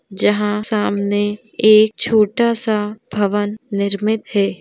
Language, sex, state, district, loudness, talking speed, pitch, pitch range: Hindi, female, West Bengal, Dakshin Dinajpur, -17 LUFS, 105 wpm, 210 Hz, 205-220 Hz